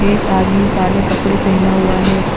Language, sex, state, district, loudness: Hindi, female, Uttar Pradesh, Hamirpur, -13 LUFS